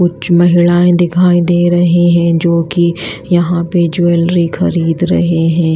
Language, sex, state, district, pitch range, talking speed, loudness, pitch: Hindi, female, Himachal Pradesh, Shimla, 170-175 Hz, 145 wpm, -11 LUFS, 175 Hz